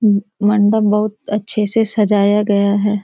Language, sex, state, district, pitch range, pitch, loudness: Hindi, female, Bihar, Kishanganj, 205-215 Hz, 210 Hz, -15 LUFS